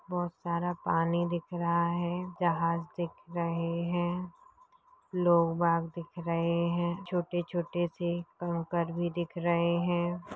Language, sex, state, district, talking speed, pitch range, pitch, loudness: Hindi, female, Maharashtra, Pune, 115 wpm, 170-175 Hz, 175 Hz, -31 LUFS